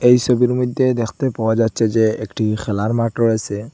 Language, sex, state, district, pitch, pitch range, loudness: Bengali, male, Assam, Hailakandi, 115 Hz, 110-125 Hz, -18 LUFS